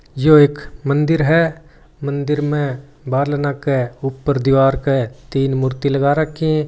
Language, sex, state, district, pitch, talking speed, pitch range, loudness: Marwari, male, Rajasthan, Churu, 140 Hz, 145 wpm, 135-150 Hz, -17 LUFS